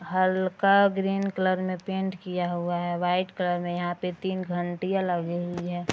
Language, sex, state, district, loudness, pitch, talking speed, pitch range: Hindi, female, Bihar, Araria, -27 LUFS, 180 Hz, 180 wpm, 175-190 Hz